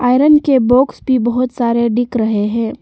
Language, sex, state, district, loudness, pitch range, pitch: Hindi, female, Arunachal Pradesh, Papum Pare, -14 LUFS, 235-255 Hz, 245 Hz